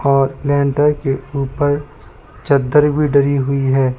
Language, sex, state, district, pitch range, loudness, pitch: Hindi, male, Uttar Pradesh, Lalitpur, 135-145 Hz, -16 LUFS, 140 Hz